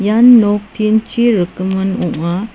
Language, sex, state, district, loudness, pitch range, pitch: Garo, female, Meghalaya, South Garo Hills, -13 LUFS, 190-225 Hz, 210 Hz